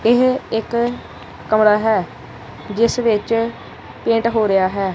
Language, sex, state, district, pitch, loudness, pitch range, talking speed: Punjabi, male, Punjab, Kapurthala, 220 Hz, -18 LUFS, 195-230 Hz, 120 wpm